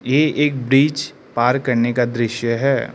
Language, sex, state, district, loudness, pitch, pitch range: Hindi, male, Arunachal Pradesh, Lower Dibang Valley, -18 LUFS, 130 Hz, 120-140 Hz